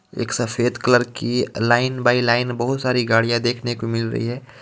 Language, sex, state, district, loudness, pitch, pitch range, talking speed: Hindi, male, Jharkhand, Ranchi, -20 LUFS, 120 Hz, 120-125 Hz, 195 wpm